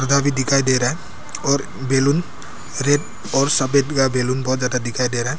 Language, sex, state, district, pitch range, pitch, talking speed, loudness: Hindi, male, Arunachal Pradesh, Papum Pare, 130-140 Hz, 135 Hz, 190 wpm, -19 LUFS